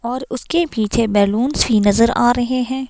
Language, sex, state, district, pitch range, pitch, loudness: Hindi, female, Himachal Pradesh, Shimla, 220-255 Hz, 240 Hz, -16 LUFS